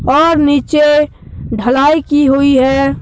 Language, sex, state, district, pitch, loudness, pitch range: Hindi, male, Jharkhand, Deoghar, 285 Hz, -11 LUFS, 270-295 Hz